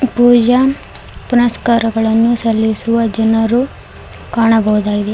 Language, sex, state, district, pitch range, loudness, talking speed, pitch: Kannada, female, Karnataka, Koppal, 220-240 Hz, -13 LUFS, 60 wpm, 230 Hz